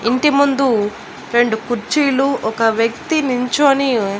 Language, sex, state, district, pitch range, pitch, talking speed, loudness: Telugu, female, Andhra Pradesh, Annamaya, 225-275 Hz, 245 Hz, 100 wpm, -16 LUFS